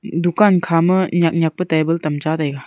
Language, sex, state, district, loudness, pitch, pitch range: Wancho, female, Arunachal Pradesh, Longding, -17 LUFS, 165 Hz, 155-175 Hz